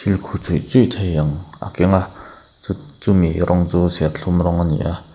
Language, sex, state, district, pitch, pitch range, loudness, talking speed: Mizo, male, Mizoram, Aizawl, 90 Hz, 85-95 Hz, -18 LUFS, 200 wpm